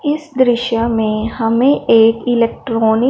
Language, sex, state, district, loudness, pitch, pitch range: Hindi, female, Punjab, Fazilka, -14 LUFS, 230 Hz, 225-250 Hz